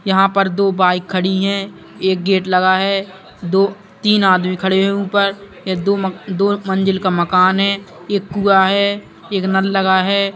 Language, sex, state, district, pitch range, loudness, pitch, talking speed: Bundeli, male, Uttar Pradesh, Jalaun, 190-200 Hz, -16 LUFS, 195 Hz, 180 wpm